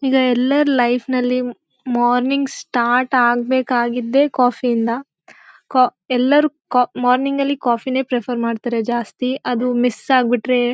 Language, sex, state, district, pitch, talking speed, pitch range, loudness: Kannada, female, Karnataka, Bellary, 250 Hz, 125 wpm, 245-260 Hz, -18 LUFS